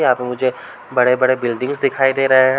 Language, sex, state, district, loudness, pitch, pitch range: Hindi, male, Uttar Pradesh, Varanasi, -17 LUFS, 130 Hz, 125-135 Hz